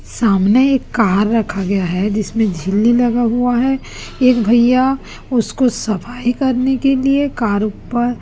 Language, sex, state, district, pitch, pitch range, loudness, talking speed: Hindi, female, Chhattisgarh, Raipur, 240 Hz, 215-255 Hz, -15 LUFS, 145 wpm